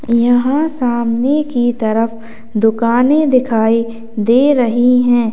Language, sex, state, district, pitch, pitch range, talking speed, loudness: Hindi, female, Uttar Pradesh, Lalitpur, 240 Hz, 230-250 Hz, 100 wpm, -14 LUFS